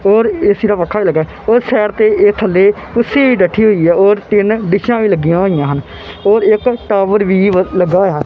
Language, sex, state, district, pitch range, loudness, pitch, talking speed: Punjabi, male, Punjab, Kapurthala, 185-215 Hz, -12 LUFS, 205 Hz, 210 wpm